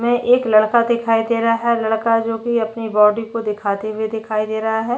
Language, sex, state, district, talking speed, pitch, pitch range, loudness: Hindi, female, Chhattisgarh, Bastar, 230 wpm, 225 Hz, 220-235 Hz, -18 LUFS